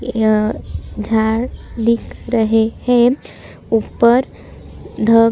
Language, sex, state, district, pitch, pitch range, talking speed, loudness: Hindi, female, Chhattisgarh, Sukma, 230 Hz, 220-240 Hz, 65 wpm, -16 LUFS